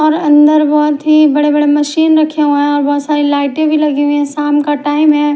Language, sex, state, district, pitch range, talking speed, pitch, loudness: Hindi, female, Punjab, Fazilka, 290-305 Hz, 235 wpm, 295 Hz, -11 LUFS